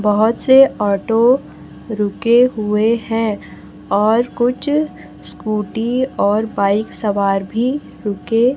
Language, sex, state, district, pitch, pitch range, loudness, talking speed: Hindi, female, Chhattisgarh, Raipur, 220 Hz, 205-240 Hz, -16 LUFS, 100 wpm